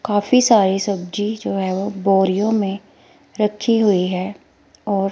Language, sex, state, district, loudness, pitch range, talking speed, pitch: Hindi, female, Himachal Pradesh, Shimla, -18 LUFS, 195-210 Hz, 130 wpm, 200 Hz